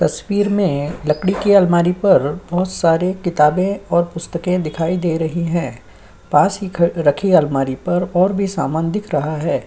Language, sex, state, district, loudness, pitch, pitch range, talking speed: Hindi, female, Uttar Pradesh, Jyotiba Phule Nagar, -17 LUFS, 170 Hz, 155-190 Hz, 160 wpm